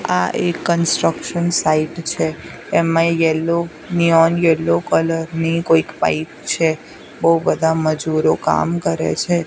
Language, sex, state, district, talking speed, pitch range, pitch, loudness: Gujarati, female, Gujarat, Gandhinagar, 125 wpm, 155-170 Hz, 165 Hz, -17 LUFS